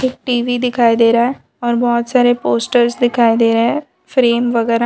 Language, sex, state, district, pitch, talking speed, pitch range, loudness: Hindi, female, Gujarat, Valsad, 240 Hz, 210 wpm, 235-245 Hz, -14 LUFS